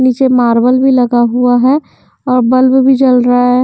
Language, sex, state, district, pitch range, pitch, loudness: Hindi, female, Haryana, Jhajjar, 245-260 Hz, 250 Hz, -10 LUFS